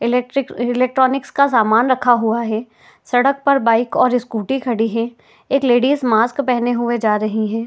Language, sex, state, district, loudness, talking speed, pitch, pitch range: Hindi, female, Uttar Pradesh, Etah, -17 LUFS, 170 wpm, 245 Hz, 225-260 Hz